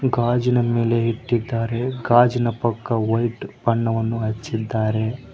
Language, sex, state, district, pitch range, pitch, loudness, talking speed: Kannada, male, Karnataka, Koppal, 115-120 Hz, 115 Hz, -21 LUFS, 90 wpm